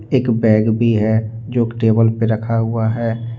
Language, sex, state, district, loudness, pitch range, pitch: Hindi, male, Jharkhand, Deoghar, -16 LUFS, 110-115 Hz, 115 Hz